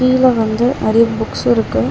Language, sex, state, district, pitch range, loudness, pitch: Tamil, female, Tamil Nadu, Chennai, 170-250 Hz, -14 LUFS, 225 Hz